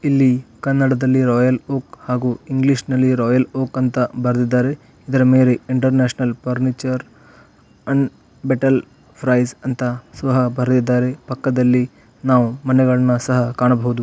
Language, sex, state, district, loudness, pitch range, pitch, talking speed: Kannada, male, Karnataka, Raichur, -18 LUFS, 125-130 Hz, 130 Hz, 110 wpm